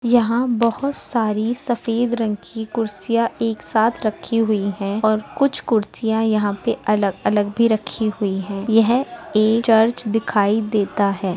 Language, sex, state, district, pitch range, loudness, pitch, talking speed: Hindi, female, Uttar Pradesh, Jyotiba Phule Nagar, 210-235 Hz, -19 LUFS, 225 Hz, 155 wpm